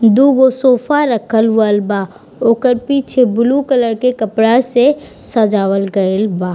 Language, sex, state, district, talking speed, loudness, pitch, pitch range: Bhojpuri, female, Bihar, East Champaran, 145 wpm, -13 LUFS, 230 Hz, 210-255 Hz